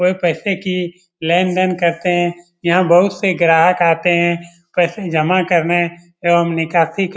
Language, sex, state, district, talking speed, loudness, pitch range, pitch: Hindi, male, Bihar, Lakhisarai, 160 wpm, -15 LUFS, 170-180 Hz, 175 Hz